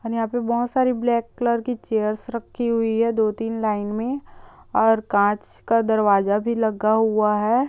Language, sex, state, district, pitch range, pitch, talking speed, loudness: Hindi, female, Bihar, Bhagalpur, 215-240 Hz, 225 Hz, 185 wpm, -21 LUFS